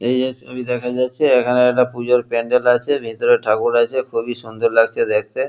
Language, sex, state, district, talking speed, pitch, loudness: Bengali, male, West Bengal, Kolkata, 175 wpm, 130 Hz, -17 LUFS